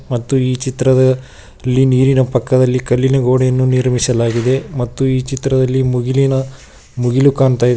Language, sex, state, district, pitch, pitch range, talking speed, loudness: Kannada, male, Karnataka, Koppal, 130 Hz, 125-130 Hz, 125 wpm, -14 LUFS